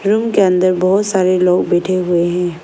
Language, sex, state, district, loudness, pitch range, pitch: Hindi, female, Arunachal Pradesh, Lower Dibang Valley, -14 LUFS, 180-195 Hz, 185 Hz